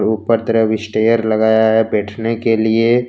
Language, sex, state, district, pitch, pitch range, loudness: Hindi, male, Jharkhand, Ranchi, 110 Hz, 110-115 Hz, -15 LUFS